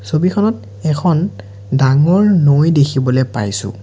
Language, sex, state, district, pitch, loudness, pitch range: Assamese, male, Assam, Sonitpur, 140 Hz, -14 LUFS, 105-165 Hz